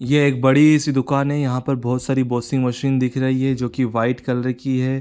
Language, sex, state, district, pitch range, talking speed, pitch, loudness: Hindi, male, Bihar, Araria, 125-140 Hz, 250 wpm, 130 Hz, -19 LUFS